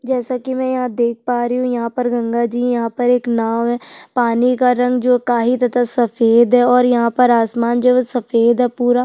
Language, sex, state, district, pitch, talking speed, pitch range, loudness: Hindi, female, Chhattisgarh, Sukma, 245 Hz, 240 wpm, 235-250 Hz, -16 LUFS